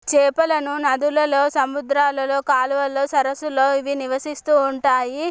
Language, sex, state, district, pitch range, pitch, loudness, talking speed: Telugu, female, Telangana, Nalgonda, 270-290 Hz, 280 Hz, -19 LUFS, 90 wpm